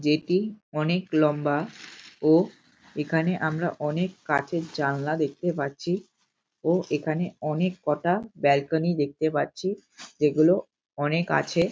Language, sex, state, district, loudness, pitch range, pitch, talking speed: Bengali, male, West Bengal, North 24 Parganas, -26 LUFS, 150-180 Hz, 160 Hz, 105 wpm